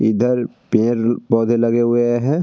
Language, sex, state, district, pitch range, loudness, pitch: Hindi, male, Bihar, Vaishali, 115-120 Hz, -17 LUFS, 120 Hz